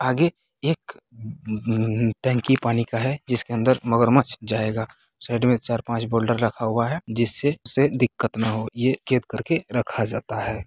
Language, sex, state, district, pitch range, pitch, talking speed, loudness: Hindi, male, Bihar, Begusarai, 110-130 Hz, 120 Hz, 175 wpm, -23 LUFS